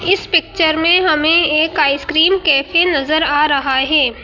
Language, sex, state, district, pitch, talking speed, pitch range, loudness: Hindi, female, Madhya Pradesh, Bhopal, 310 Hz, 155 wpm, 290-340 Hz, -13 LUFS